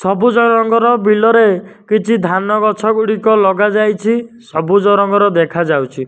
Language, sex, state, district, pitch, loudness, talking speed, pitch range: Odia, male, Odisha, Nuapada, 210 Hz, -12 LUFS, 90 wpm, 195-225 Hz